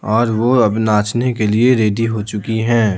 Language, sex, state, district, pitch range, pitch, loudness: Hindi, male, Bihar, Patna, 105-120 Hz, 110 Hz, -15 LUFS